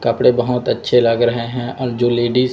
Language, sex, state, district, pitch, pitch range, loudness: Hindi, male, Chhattisgarh, Raipur, 120 Hz, 120-125 Hz, -16 LUFS